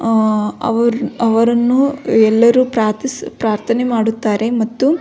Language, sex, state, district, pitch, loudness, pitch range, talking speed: Kannada, female, Karnataka, Belgaum, 230 Hz, -15 LUFS, 220-250 Hz, 95 wpm